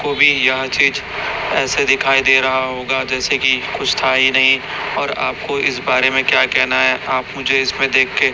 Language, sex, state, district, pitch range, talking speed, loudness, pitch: Hindi, male, Chhattisgarh, Raipur, 130-135 Hz, 200 wpm, -15 LUFS, 135 Hz